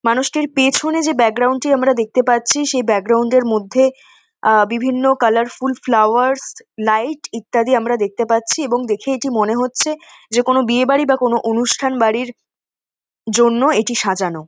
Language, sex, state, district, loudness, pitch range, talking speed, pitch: Bengali, female, West Bengal, North 24 Parganas, -16 LUFS, 230-265 Hz, 155 wpm, 245 Hz